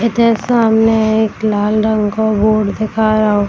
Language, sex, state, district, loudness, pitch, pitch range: Hindi, female, Bihar, Darbhanga, -13 LUFS, 220 Hz, 215-220 Hz